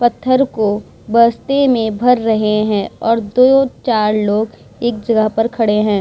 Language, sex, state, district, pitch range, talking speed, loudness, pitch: Hindi, female, Bihar, Vaishali, 215-245 Hz, 150 wpm, -15 LUFS, 225 Hz